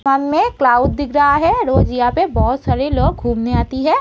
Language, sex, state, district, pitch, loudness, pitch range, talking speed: Hindi, female, Uttar Pradesh, Etah, 275 Hz, -15 LUFS, 245-305 Hz, 225 wpm